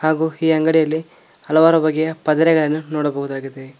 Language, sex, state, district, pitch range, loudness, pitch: Kannada, male, Karnataka, Koppal, 150-160 Hz, -17 LUFS, 155 Hz